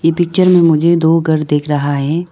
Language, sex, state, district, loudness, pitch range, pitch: Hindi, female, Arunachal Pradesh, Lower Dibang Valley, -12 LUFS, 150-170 Hz, 160 Hz